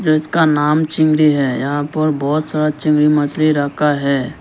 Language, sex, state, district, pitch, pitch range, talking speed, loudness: Hindi, male, Arunachal Pradesh, Lower Dibang Valley, 150 Hz, 145-155 Hz, 165 wpm, -15 LUFS